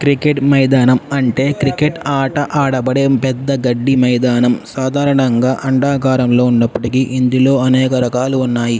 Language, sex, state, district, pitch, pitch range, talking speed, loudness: Telugu, male, Andhra Pradesh, Guntur, 130 Hz, 125-140 Hz, 125 wpm, -14 LUFS